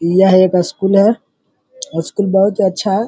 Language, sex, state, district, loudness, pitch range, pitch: Hindi, male, Uttar Pradesh, Hamirpur, -13 LUFS, 185-205 Hz, 195 Hz